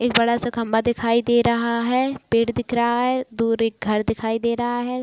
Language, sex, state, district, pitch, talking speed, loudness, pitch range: Hindi, female, Bihar, Saran, 235 Hz, 225 wpm, -21 LUFS, 230-240 Hz